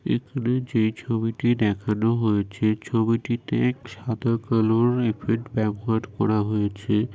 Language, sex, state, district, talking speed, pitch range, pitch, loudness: Bengali, male, West Bengal, North 24 Parganas, 100 wpm, 110-120 Hz, 115 Hz, -24 LUFS